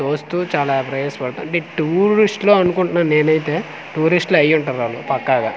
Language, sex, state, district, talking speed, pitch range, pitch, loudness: Telugu, male, Andhra Pradesh, Manyam, 160 wpm, 145-180 Hz, 155 Hz, -17 LUFS